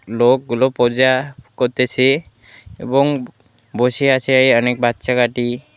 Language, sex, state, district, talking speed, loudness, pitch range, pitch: Bengali, male, West Bengal, Alipurduar, 95 wpm, -16 LUFS, 120-130 Hz, 125 Hz